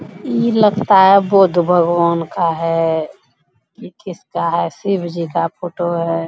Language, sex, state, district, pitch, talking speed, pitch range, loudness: Hindi, female, Bihar, Bhagalpur, 175 Hz, 160 wpm, 165-195 Hz, -15 LUFS